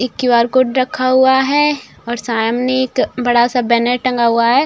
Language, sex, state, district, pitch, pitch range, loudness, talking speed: Hindi, female, Bihar, Saran, 250 Hz, 240-255 Hz, -14 LUFS, 195 wpm